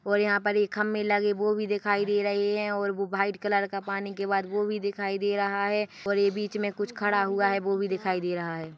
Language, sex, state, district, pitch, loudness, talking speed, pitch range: Hindi, female, Chhattisgarh, Bilaspur, 200 Hz, -27 LUFS, 275 wpm, 200-205 Hz